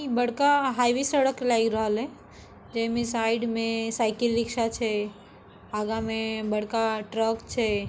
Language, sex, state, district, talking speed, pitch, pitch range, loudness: Maithili, female, Bihar, Darbhanga, 120 wpm, 225 Hz, 220-240 Hz, -26 LUFS